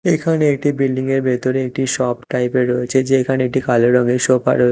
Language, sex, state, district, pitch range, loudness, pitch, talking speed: Bengali, male, Odisha, Malkangiri, 125-135 Hz, -17 LUFS, 130 Hz, 205 wpm